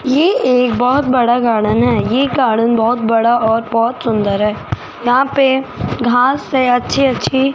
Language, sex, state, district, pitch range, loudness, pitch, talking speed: Hindi, female, Rajasthan, Jaipur, 230-265 Hz, -14 LUFS, 245 Hz, 160 wpm